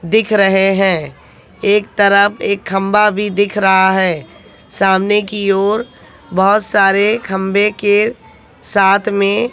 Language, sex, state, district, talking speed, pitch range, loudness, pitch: Hindi, female, Haryana, Jhajjar, 125 wpm, 195-210 Hz, -13 LUFS, 200 Hz